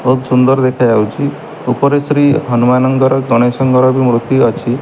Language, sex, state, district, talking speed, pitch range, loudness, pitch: Odia, male, Odisha, Malkangiri, 110 wpm, 120-135 Hz, -12 LUFS, 130 Hz